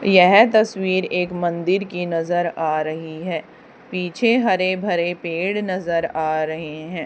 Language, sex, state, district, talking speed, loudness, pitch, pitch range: Hindi, female, Haryana, Charkhi Dadri, 145 wpm, -20 LUFS, 175 Hz, 165-190 Hz